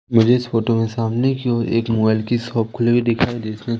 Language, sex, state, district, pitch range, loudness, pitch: Hindi, male, Madhya Pradesh, Umaria, 115-120 Hz, -19 LUFS, 115 Hz